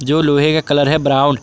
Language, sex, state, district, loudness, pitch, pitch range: Hindi, male, Jharkhand, Garhwa, -14 LUFS, 145 Hz, 140-155 Hz